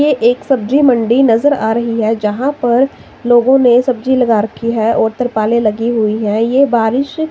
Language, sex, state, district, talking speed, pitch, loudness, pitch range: Hindi, female, Himachal Pradesh, Shimla, 195 wpm, 240 Hz, -13 LUFS, 225-260 Hz